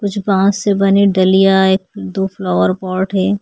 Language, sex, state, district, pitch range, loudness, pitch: Hindi, female, Uttar Pradesh, Etah, 190-200 Hz, -14 LUFS, 190 Hz